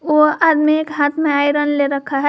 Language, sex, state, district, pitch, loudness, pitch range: Hindi, female, Jharkhand, Garhwa, 295 Hz, -15 LUFS, 285-305 Hz